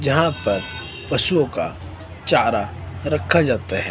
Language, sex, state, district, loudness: Hindi, male, Himachal Pradesh, Shimla, -21 LUFS